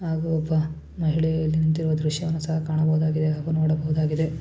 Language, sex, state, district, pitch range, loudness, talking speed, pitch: Kannada, female, Karnataka, Shimoga, 155-160 Hz, -24 LUFS, 120 wpm, 155 Hz